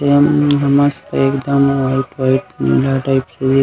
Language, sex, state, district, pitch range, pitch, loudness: Chhattisgarhi, male, Chhattisgarh, Raigarh, 135-140 Hz, 135 Hz, -15 LUFS